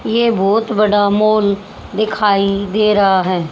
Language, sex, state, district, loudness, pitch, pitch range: Hindi, female, Haryana, Jhajjar, -14 LUFS, 205 Hz, 195-215 Hz